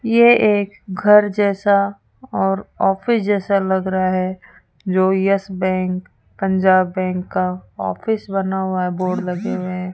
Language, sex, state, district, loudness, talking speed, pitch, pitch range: Hindi, female, Rajasthan, Jaipur, -18 LUFS, 145 wpm, 190 Hz, 185-200 Hz